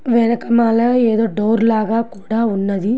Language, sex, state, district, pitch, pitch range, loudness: Telugu, female, Andhra Pradesh, Guntur, 225 Hz, 220-235 Hz, -16 LUFS